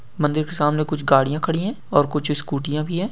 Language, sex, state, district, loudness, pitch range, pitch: Hindi, male, Bihar, Samastipur, -21 LUFS, 145-165 Hz, 150 Hz